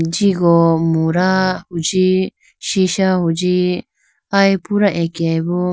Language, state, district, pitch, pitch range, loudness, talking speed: Idu Mishmi, Arunachal Pradesh, Lower Dibang Valley, 180 Hz, 170-190 Hz, -16 LUFS, 95 wpm